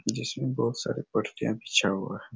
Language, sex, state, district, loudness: Hindi, male, Chhattisgarh, Raigarh, -29 LUFS